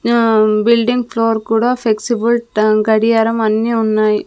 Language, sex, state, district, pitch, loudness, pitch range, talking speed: Telugu, female, Andhra Pradesh, Sri Satya Sai, 225 Hz, -14 LUFS, 215-235 Hz, 115 wpm